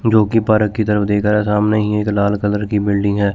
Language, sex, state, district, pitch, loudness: Hindi, male, Chandigarh, Chandigarh, 105 Hz, -16 LUFS